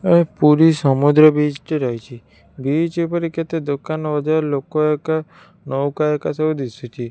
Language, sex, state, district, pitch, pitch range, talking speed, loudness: Odia, female, Odisha, Khordha, 150 Hz, 140-160 Hz, 150 wpm, -18 LUFS